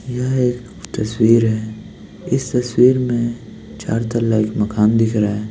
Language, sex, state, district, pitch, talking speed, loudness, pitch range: Hindi, male, Uttarakhand, Tehri Garhwal, 115 Hz, 140 wpm, -17 LUFS, 110-120 Hz